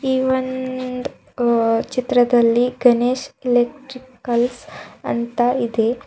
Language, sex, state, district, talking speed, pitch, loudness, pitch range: Kannada, female, Karnataka, Bidar, 80 wpm, 250 Hz, -19 LUFS, 240-260 Hz